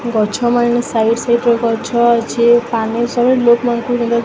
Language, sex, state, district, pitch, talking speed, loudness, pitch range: Odia, female, Odisha, Sambalpur, 235 Hz, 115 wpm, -14 LUFS, 230-240 Hz